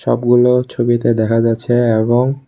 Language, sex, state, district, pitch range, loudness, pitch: Bengali, male, Tripura, West Tripura, 115-125 Hz, -14 LUFS, 120 Hz